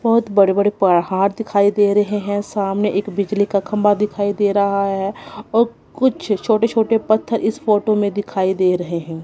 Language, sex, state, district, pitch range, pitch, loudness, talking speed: Hindi, female, Punjab, Kapurthala, 200-215 Hz, 205 Hz, -18 LUFS, 190 wpm